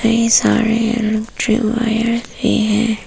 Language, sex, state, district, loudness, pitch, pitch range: Hindi, female, Arunachal Pradesh, Papum Pare, -16 LUFS, 225 Hz, 220-230 Hz